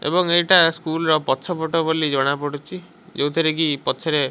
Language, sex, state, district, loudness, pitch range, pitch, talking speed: Odia, male, Odisha, Malkangiri, -19 LUFS, 145-165 Hz, 160 Hz, 180 wpm